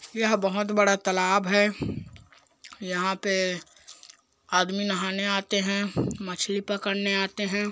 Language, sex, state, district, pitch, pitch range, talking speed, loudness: Hindi, male, Chhattisgarh, Korba, 200 Hz, 190-205 Hz, 115 wpm, -26 LUFS